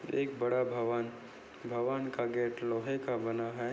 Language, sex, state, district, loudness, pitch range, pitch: Hindi, male, Maharashtra, Chandrapur, -35 LUFS, 115-125 Hz, 120 Hz